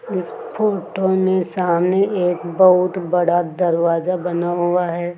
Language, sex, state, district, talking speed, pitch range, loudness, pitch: Hindi, female, Rajasthan, Jaipur, 125 wpm, 175-185 Hz, -18 LUFS, 180 Hz